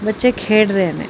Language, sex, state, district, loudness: Punjabi, female, Karnataka, Bangalore, -16 LUFS